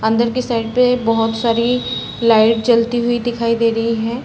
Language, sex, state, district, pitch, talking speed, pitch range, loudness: Hindi, female, Uttar Pradesh, Varanasi, 230 Hz, 185 wpm, 225-240 Hz, -16 LUFS